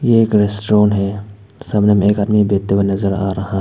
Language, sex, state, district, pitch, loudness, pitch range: Hindi, male, Arunachal Pradesh, Papum Pare, 100 Hz, -15 LUFS, 100-105 Hz